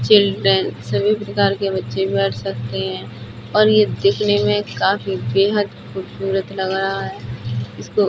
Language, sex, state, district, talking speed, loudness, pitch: Hindi, female, Uttar Pradesh, Budaun, 150 wpm, -19 LUFS, 190 Hz